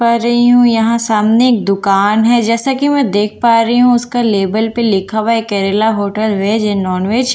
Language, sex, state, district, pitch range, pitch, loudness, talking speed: Hindi, female, Bihar, Katihar, 205-240 Hz, 225 Hz, -12 LUFS, 220 wpm